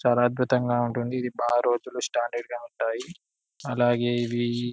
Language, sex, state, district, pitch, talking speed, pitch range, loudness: Telugu, male, Telangana, Karimnagar, 120 Hz, 150 wpm, 120-125 Hz, -26 LUFS